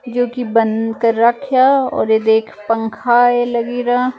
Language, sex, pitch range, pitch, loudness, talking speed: Punjabi, female, 225-245 Hz, 240 Hz, -15 LUFS, 160 wpm